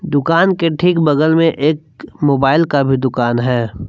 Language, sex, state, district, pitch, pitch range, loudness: Hindi, male, Jharkhand, Palamu, 150 Hz, 135-165 Hz, -14 LUFS